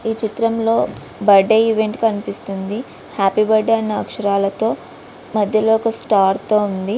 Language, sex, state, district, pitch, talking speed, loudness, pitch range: Telugu, female, Andhra Pradesh, Visakhapatnam, 215 Hz, 130 wpm, -17 LUFS, 200-225 Hz